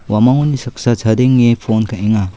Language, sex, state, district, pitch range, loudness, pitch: Garo, male, Meghalaya, South Garo Hills, 110-125 Hz, -14 LUFS, 115 Hz